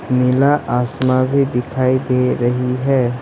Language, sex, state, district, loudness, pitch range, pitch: Hindi, male, Assam, Sonitpur, -16 LUFS, 125-130 Hz, 130 Hz